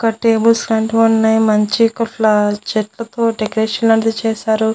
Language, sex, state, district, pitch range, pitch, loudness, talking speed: Telugu, female, Andhra Pradesh, Annamaya, 220-225 Hz, 225 Hz, -15 LUFS, 125 wpm